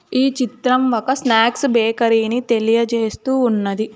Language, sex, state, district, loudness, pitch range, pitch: Telugu, female, Telangana, Hyderabad, -17 LUFS, 225-255 Hz, 235 Hz